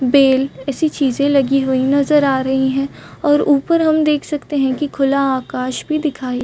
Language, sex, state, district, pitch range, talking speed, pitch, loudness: Hindi, female, Chhattisgarh, Raigarh, 265-295 Hz, 185 wpm, 275 Hz, -16 LUFS